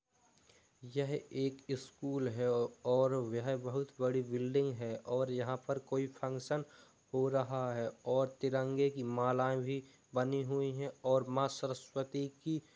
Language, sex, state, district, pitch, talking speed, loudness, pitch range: Hindi, male, Uttar Pradesh, Jalaun, 130 Hz, 140 wpm, -37 LUFS, 125-135 Hz